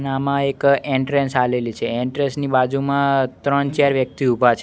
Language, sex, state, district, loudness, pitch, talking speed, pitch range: Gujarati, male, Gujarat, Gandhinagar, -19 LUFS, 135 Hz, 180 wpm, 125-140 Hz